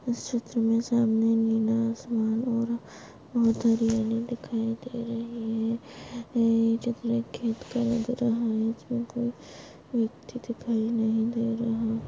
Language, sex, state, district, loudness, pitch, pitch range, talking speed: Hindi, female, Maharashtra, Solapur, -28 LUFS, 230 Hz, 225-235 Hz, 130 wpm